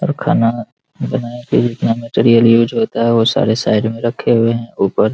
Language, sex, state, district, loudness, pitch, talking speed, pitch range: Hindi, male, Bihar, Araria, -14 LUFS, 115 Hz, 210 wpm, 115-120 Hz